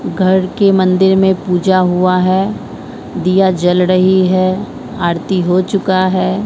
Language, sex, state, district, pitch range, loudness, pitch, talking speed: Hindi, female, Bihar, Katihar, 185-190 Hz, -13 LUFS, 185 Hz, 140 wpm